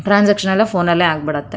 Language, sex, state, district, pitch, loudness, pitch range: Kannada, female, Karnataka, Mysore, 175 Hz, -15 LUFS, 160-205 Hz